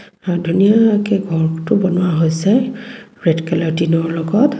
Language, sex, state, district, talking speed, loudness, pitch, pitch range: Assamese, female, Assam, Kamrup Metropolitan, 130 wpm, -16 LUFS, 185 Hz, 165-215 Hz